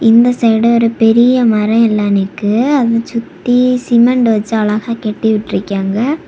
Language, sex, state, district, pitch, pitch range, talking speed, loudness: Tamil, female, Tamil Nadu, Kanyakumari, 230 Hz, 215-240 Hz, 135 wpm, -12 LUFS